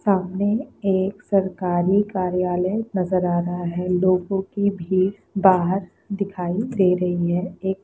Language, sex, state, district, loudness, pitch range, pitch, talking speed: Hindi, female, Bihar, Lakhisarai, -22 LUFS, 180-200 Hz, 190 Hz, 140 wpm